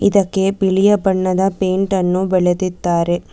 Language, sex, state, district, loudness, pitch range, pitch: Kannada, female, Karnataka, Bangalore, -16 LUFS, 185-195 Hz, 190 Hz